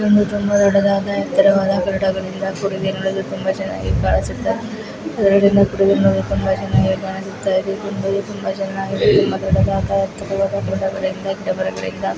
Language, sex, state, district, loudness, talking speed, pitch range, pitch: Kannada, female, Karnataka, Chamarajanagar, -18 LUFS, 120 wpm, 190-200 Hz, 195 Hz